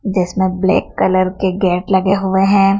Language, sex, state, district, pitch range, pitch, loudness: Hindi, female, Madhya Pradesh, Dhar, 185-195 Hz, 190 Hz, -15 LUFS